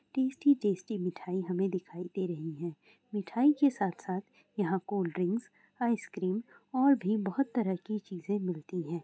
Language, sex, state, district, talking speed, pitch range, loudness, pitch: Hindi, female, Uttar Pradesh, Jalaun, 155 wpm, 180-230 Hz, -32 LUFS, 195 Hz